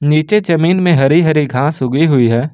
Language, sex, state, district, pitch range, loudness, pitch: Hindi, male, Jharkhand, Ranchi, 135-165 Hz, -12 LUFS, 155 Hz